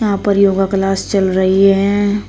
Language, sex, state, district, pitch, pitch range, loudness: Hindi, female, Uttar Pradesh, Shamli, 195 Hz, 195-200 Hz, -13 LUFS